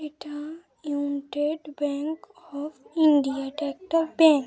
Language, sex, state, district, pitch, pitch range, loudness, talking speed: Bengali, female, West Bengal, Dakshin Dinajpur, 295 Hz, 285-320 Hz, -26 LUFS, 135 wpm